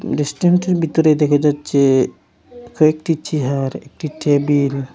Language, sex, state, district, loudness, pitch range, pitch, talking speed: Bengali, male, Assam, Hailakandi, -17 LUFS, 140-160 Hz, 150 Hz, 110 wpm